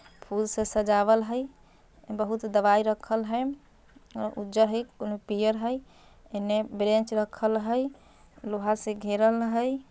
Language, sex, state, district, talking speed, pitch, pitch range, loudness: Bajjika, female, Bihar, Vaishali, 135 wpm, 220 Hz, 210-230 Hz, -27 LUFS